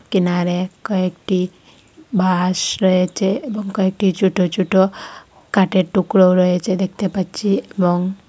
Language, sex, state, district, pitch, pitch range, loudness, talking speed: Bengali, female, Assam, Hailakandi, 190 Hz, 180-195 Hz, -18 LUFS, 100 wpm